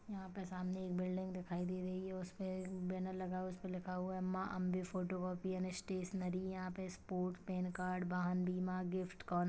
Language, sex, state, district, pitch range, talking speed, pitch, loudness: Hindi, female, Chhattisgarh, Kabirdham, 180-185 Hz, 210 wpm, 185 Hz, -43 LUFS